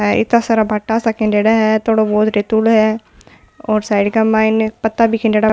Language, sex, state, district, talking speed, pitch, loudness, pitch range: Marwari, female, Rajasthan, Nagaur, 195 wpm, 220 Hz, -14 LUFS, 215-225 Hz